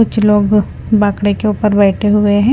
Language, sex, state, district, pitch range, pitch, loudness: Hindi, female, Punjab, Fazilka, 205-215 Hz, 210 Hz, -13 LUFS